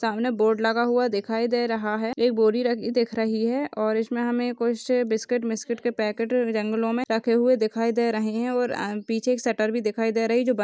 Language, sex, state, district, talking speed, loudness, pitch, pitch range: Hindi, female, Rajasthan, Churu, 225 wpm, -24 LUFS, 230 Hz, 220-245 Hz